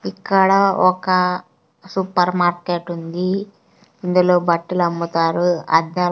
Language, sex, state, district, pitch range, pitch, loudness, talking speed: Telugu, female, Andhra Pradesh, Sri Satya Sai, 170-185 Hz, 180 Hz, -18 LUFS, 90 wpm